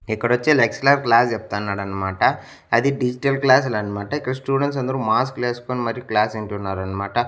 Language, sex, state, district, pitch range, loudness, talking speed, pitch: Telugu, male, Andhra Pradesh, Annamaya, 105-130 Hz, -20 LUFS, 115 wpm, 120 Hz